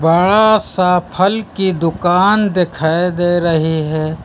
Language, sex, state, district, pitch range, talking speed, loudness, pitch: Hindi, male, Uttar Pradesh, Lucknow, 165-190 Hz, 125 wpm, -14 LUFS, 175 Hz